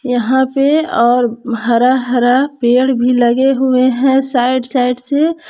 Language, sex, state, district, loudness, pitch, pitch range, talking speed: Hindi, female, Jharkhand, Palamu, -13 LUFS, 255 Hz, 245-270 Hz, 140 wpm